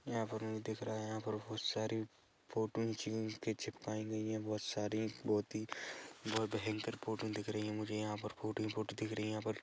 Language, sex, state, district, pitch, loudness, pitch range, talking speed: Hindi, male, Chhattisgarh, Rajnandgaon, 110 Hz, -41 LUFS, 105-110 Hz, 225 wpm